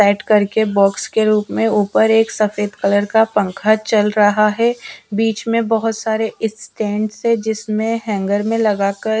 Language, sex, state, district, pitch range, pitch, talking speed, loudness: Hindi, female, Bihar, Kaimur, 205-225 Hz, 215 Hz, 155 wpm, -16 LUFS